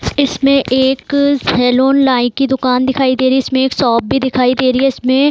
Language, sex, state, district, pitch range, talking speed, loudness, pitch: Hindi, female, Bihar, Darbhanga, 255-270 Hz, 225 wpm, -13 LUFS, 260 Hz